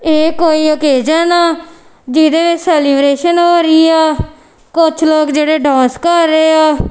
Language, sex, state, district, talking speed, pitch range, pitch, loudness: Punjabi, female, Punjab, Kapurthala, 150 wpm, 305-335 Hz, 315 Hz, -11 LUFS